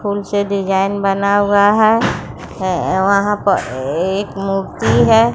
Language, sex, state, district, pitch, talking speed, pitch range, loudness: Hindi, female, Bihar, West Champaran, 200 Hz, 135 wpm, 195-205 Hz, -15 LUFS